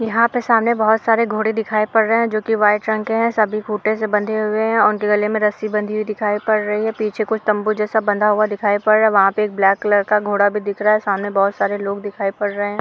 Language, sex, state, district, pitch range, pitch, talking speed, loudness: Hindi, female, Uttar Pradesh, Jalaun, 205-220 Hz, 215 Hz, 270 wpm, -17 LUFS